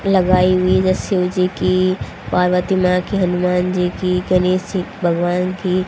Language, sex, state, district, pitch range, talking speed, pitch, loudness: Hindi, female, Haryana, Jhajjar, 180-185 Hz, 165 wpm, 185 Hz, -17 LUFS